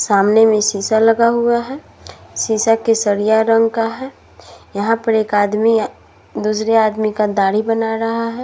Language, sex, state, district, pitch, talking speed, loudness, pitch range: Hindi, female, Uttar Pradesh, Muzaffarnagar, 225 Hz, 155 wpm, -15 LUFS, 215-225 Hz